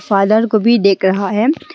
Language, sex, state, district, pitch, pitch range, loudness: Hindi, female, Arunachal Pradesh, Longding, 210 Hz, 195-225 Hz, -13 LUFS